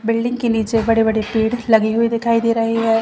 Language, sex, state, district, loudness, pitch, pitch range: Hindi, female, Chhattisgarh, Rajnandgaon, -17 LUFS, 225 Hz, 220-230 Hz